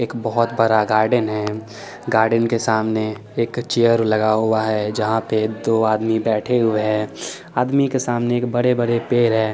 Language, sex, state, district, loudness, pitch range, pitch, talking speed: Hindi, male, Chandigarh, Chandigarh, -19 LUFS, 110-120 Hz, 110 Hz, 165 wpm